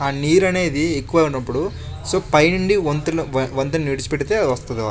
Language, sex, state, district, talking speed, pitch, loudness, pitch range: Telugu, male, Andhra Pradesh, Chittoor, 195 wpm, 150 Hz, -19 LUFS, 135-165 Hz